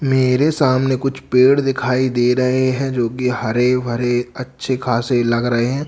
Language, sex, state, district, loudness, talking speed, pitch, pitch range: Hindi, male, Bihar, Katihar, -17 LUFS, 175 wpm, 125 Hz, 120-130 Hz